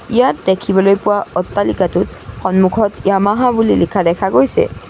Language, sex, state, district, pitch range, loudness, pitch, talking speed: Assamese, female, Assam, Sonitpur, 190-215 Hz, -14 LUFS, 195 Hz, 120 wpm